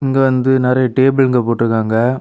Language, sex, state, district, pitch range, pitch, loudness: Tamil, male, Tamil Nadu, Kanyakumari, 115-135 Hz, 130 Hz, -14 LUFS